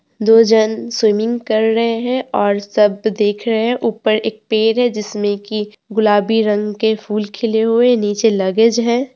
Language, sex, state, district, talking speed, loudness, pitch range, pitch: Hindi, female, Bihar, Purnia, 170 wpm, -15 LUFS, 210-230 Hz, 220 Hz